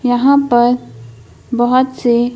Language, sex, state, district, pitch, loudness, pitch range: Hindi, female, Madhya Pradesh, Bhopal, 240 Hz, -13 LUFS, 205-250 Hz